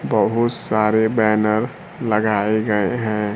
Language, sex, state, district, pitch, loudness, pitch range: Hindi, male, Bihar, Kaimur, 110 Hz, -19 LUFS, 105-115 Hz